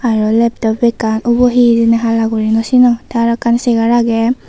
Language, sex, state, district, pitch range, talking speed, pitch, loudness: Chakma, female, Tripura, Unakoti, 225-240 Hz, 200 wpm, 230 Hz, -12 LUFS